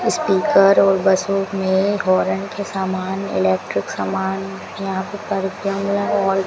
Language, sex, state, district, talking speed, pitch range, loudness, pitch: Hindi, female, Rajasthan, Bikaner, 120 wpm, 190-200 Hz, -19 LUFS, 195 Hz